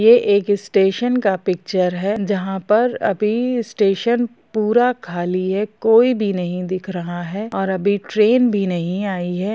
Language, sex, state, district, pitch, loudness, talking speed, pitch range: Hindi, female, Jharkhand, Jamtara, 200 Hz, -18 LUFS, 165 wpm, 185-220 Hz